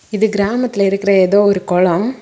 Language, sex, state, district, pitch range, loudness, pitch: Tamil, female, Tamil Nadu, Kanyakumari, 190-215 Hz, -14 LUFS, 200 Hz